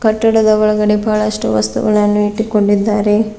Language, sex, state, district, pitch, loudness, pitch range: Kannada, female, Karnataka, Bidar, 210 Hz, -13 LUFS, 205-215 Hz